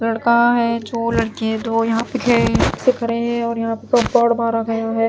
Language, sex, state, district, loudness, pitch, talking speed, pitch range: Hindi, female, Bihar, Katihar, -18 LUFS, 230 Hz, 130 wpm, 225-235 Hz